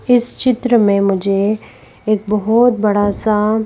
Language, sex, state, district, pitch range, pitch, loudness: Hindi, female, Madhya Pradesh, Bhopal, 205-235 Hz, 215 Hz, -15 LUFS